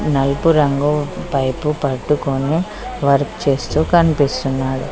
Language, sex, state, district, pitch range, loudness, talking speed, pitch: Telugu, female, Telangana, Mahabubabad, 135-150 Hz, -17 LUFS, 85 wpm, 140 Hz